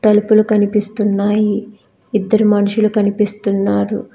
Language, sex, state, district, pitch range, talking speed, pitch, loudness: Telugu, female, Telangana, Hyderabad, 205-215 Hz, 70 wpm, 210 Hz, -15 LUFS